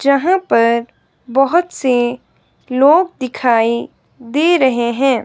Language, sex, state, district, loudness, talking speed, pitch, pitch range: Hindi, female, Himachal Pradesh, Shimla, -15 LUFS, 105 wpm, 260 Hz, 240-300 Hz